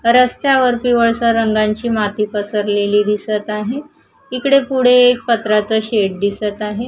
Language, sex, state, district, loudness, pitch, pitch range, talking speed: Marathi, female, Maharashtra, Gondia, -15 LUFS, 220 Hz, 210-245 Hz, 120 wpm